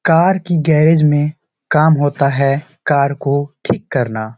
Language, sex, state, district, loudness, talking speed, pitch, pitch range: Hindi, male, Bihar, Samastipur, -15 LUFS, 150 wpm, 145 Hz, 140-160 Hz